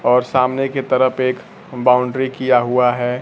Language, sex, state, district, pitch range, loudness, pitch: Hindi, male, Bihar, Kaimur, 125-130 Hz, -17 LUFS, 130 Hz